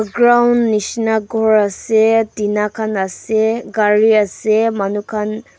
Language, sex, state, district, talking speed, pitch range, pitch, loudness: Nagamese, female, Nagaland, Dimapur, 130 wpm, 210-225 Hz, 220 Hz, -15 LUFS